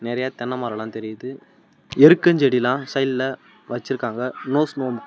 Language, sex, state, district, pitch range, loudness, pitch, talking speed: Tamil, male, Tamil Nadu, Namakkal, 120-135 Hz, -20 LUFS, 130 Hz, 95 wpm